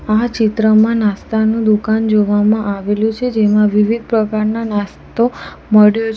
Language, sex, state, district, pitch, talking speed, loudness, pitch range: Gujarati, female, Gujarat, Valsad, 220 Hz, 125 wpm, -14 LUFS, 210-225 Hz